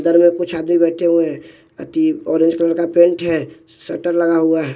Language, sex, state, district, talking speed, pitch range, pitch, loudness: Hindi, male, Bihar, West Champaran, 215 wpm, 165-175 Hz, 170 Hz, -16 LUFS